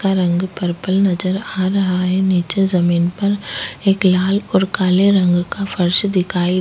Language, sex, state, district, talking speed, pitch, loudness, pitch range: Hindi, female, Chhattisgarh, Kabirdham, 170 wpm, 185 Hz, -16 LUFS, 180-195 Hz